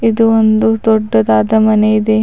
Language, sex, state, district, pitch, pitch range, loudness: Kannada, female, Karnataka, Bidar, 220 Hz, 215-225 Hz, -11 LUFS